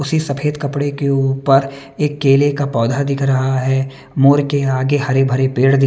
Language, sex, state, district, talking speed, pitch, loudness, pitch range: Hindi, male, Bihar, West Champaran, 195 wpm, 135 Hz, -16 LUFS, 135-145 Hz